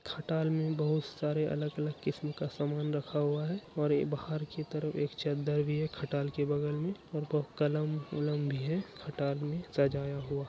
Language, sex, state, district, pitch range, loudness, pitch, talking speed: Hindi, male, Bihar, Araria, 145-155 Hz, -34 LUFS, 150 Hz, 190 wpm